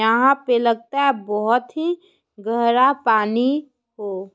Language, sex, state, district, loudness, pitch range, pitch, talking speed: Hindi, male, Bihar, Muzaffarpur, -19 LUFS, 220-275 Hz, 240 Hz, 125 wpm